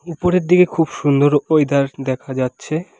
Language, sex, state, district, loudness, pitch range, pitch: Bengali, male, West Bengal, Alipurduar, -17 LUFS, 140-170 Hz, 145 Hz